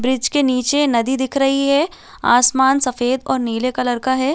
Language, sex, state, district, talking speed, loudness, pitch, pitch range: Hindi, female, Chhattisgarh, Balrampur, 195 wpm, -17 LUFS, 260 Hz, 250-275 Hz